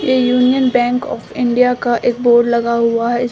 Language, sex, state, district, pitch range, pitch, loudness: Hindi, female, Bihar, Samastipur, 235-250 Hz, 245 Hz, -14 LUFS